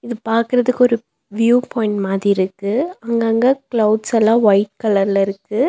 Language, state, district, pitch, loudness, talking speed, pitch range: Tamil, Tamil Nadu, Nilgiris, 225 Hz, -17 LUFS, 125 wpm, 200-240 Hz